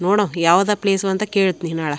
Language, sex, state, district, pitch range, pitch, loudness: Kannada, female, Karnataka, Chamarajanagar, 170-200 Hz, 195 Hz, -18 LUFS